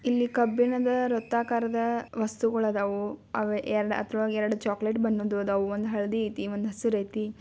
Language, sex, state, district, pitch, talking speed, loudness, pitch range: Kannada, female, Karnataka, Belgaum, 220 Hz, 145 wpm, -28 LUFS, 210-235 Hz